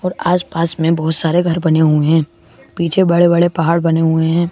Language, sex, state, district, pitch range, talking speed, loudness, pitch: Hindi, male, Madhya Pradesh, Bhopal, 160-175 Hz, 200 wpm, -14 LUFS, 165 Hz